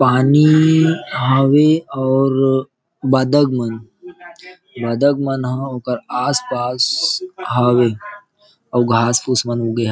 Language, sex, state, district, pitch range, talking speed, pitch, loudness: Chhattisgarhi, male, Chhattisgarh, Rajnandgaon, 125-155 Hz, 85 wpm, 135 Hz, -16 LUFS